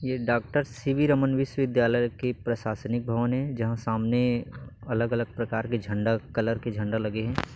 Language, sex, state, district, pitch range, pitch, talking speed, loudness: Chhattisgarhi, male, Chhattisgarh, Bilaspur, 115-130 Hz, 120 Hz, 190 wpm, -27 LUFS